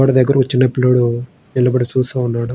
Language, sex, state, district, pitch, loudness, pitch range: Telugu, male, Andhra Pradesh, Srikakulam, 125 Hz, -15 LUFS, 125-130 Hz